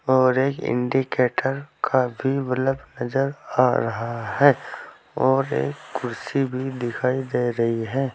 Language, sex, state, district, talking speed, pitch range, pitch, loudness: Hindi, male, Uttar Pradesh, Saharanpur, 130 wpm, 120-135 Hz, 130 Hz, -23 LUFS